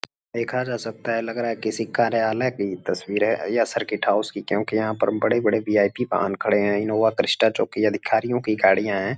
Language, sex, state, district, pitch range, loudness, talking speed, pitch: Hindi, male, Uttar Pradesh, Gorakhpur, 105-115 Hz, -22 LUFS, 205 wpm, 110 Hz